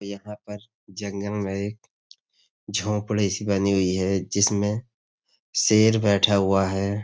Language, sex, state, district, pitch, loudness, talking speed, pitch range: Hindi, male, Uttar Pradesh, Budaun, 100 Hz, -23 LUFS, 120 wpm, 100-105 Hz